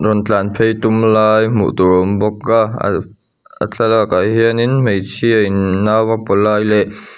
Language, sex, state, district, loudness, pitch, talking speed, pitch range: Mizo, male, Mizoram, Aizawl, -14 LUFS, 110 Hz, 200 wpm, 100-115 Hz